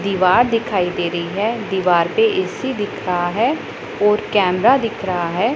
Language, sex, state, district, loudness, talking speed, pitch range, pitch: Hindi, female, Punjab, Pathankot, -18 LUFS, 170 wpm, 180-220 Hz, 195 Hz